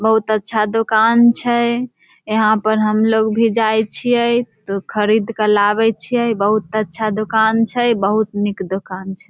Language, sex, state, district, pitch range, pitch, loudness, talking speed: Maithili, female, Bihar, Samastipur, 210-230 Hz, 220 Hz, -16 LUFS, 150 wpm